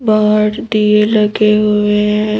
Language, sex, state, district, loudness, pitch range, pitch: Hindi, female, Madhya Pradesh, Bhopal, -12 LUFS, 210-215 Hz, 210 Hz